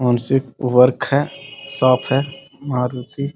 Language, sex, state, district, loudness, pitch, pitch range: Hindi, male, Bihar, Muzaffarpur, -18 LUFS, 135 Hz, 125-140 Hz